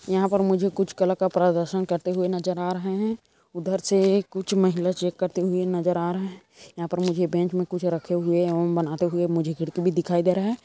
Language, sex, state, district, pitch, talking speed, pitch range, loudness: Hindi, male, Chhattisgarh, Kabirdham, 180 Hz, 235 wpm, 175-190 Hz, -24 LUFS